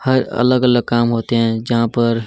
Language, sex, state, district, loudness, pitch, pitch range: Hindi, male, Chhattisgarh, Kabirdham, -16 LUFS, 120 Hz, 115-125 Hz